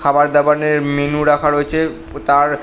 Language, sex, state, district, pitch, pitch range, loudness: Bengali, male, West Bengal, North 24 Parganas, 145 Hz, 145-150 Hz, -15 LUFS